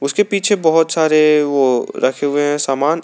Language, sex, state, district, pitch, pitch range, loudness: Hindi, male, Jharkhand, Garhwa, 150 Hz, 140-160 Hz, -15 LUFS